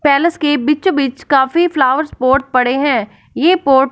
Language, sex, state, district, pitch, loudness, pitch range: Hindi, female, Punjab, Fazilka, 280 Hz, -14 LUFS, 265-305 Hz